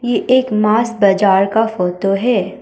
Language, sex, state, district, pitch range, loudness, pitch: Hindi, female, Arunachal Pradesh, Papum Pare, 195-230 Hz, -14 LUFS, 215 Hz